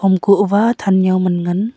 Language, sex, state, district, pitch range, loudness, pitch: Wancho, female, Arunachal Pradesh, Longding, 185-205 Hz, -14 LUFS, 195 Hz